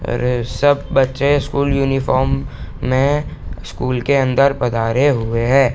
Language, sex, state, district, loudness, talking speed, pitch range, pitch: Hindi, male, Bihar, East Champaran, -17 LUFS, 125 wpm, 120-140 Hz, 135 Hz